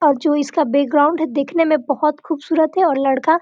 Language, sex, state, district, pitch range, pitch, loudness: Hindi, female, Bihar, Gopalganj, 285-320 Hz, 305 Hz, -17 LUFS